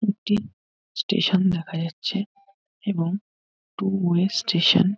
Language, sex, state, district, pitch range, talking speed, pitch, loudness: Bengali, male, West Bengal, North 24 Parganas, 180-210 Hz, 110 wpm, 195 Hz, -24 LUFS